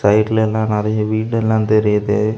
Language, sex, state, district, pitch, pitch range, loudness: Tamil, male, Tamil Nadu, Kanyakumari, 110 Hz, 105-110 Hz, -16 LUFS